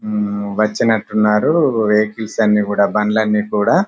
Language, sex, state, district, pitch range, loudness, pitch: Telugu, male, Telangana, Karimnagar, 105-110 Hz, -16 LUFS, 105 Hz